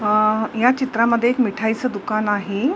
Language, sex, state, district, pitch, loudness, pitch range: Marathi, female, Maharashtra, Mumbai Suburban, 220 Hz, -19 LUFS, 215-245 Hz